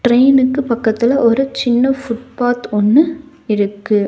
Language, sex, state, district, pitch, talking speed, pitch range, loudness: Tamil, female, Tamil Nadu, Nilgiris, 245 Hz, 105 wpm, 225-270 Hz, -14 LUFS